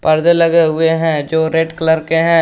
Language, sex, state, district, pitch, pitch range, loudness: Hindi, male, Jharkhand, Garhwa, 160 Hz, 160-165 Hz, -13 LUFS